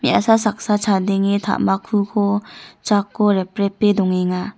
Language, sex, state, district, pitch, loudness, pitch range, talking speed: Garo, female, Meghalaya, North Garo Hills, 200 Hz, -18 LUFS, 195-210 Hz, 90 wpm